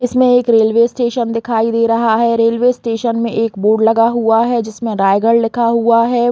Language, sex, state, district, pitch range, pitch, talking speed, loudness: Hindi, female, Chhattisgarh, Raigarh, 225-235 Hz, 230 Hz, 200 wpm, -13 LUFS